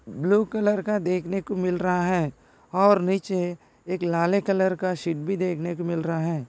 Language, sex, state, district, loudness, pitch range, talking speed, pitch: Hindi, male, Maharashtra, Sindhudurg, -25 LUFS, 170-195 Hz, 195 wpm, 180 Hz